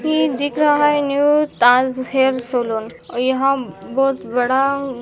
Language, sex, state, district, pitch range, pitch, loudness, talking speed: Hindi, female, Maharashtra, Aurangabad, 250-285 Hz, 265 Hz, -17 LUFS, 155 wpm